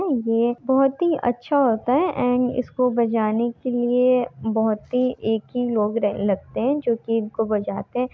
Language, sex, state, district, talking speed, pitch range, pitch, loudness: Hindi, female, Bihar, Darbhanga, 145 wpm, 225-255 Hz, 240 Hz, -22 LUFS